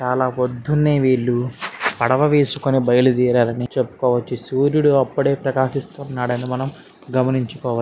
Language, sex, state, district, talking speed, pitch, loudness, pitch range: Telugu, male, Andhra Pradesh, Srikakulam, 90 wpm, 130 Hz, -19 LUFS, 125-140 Hz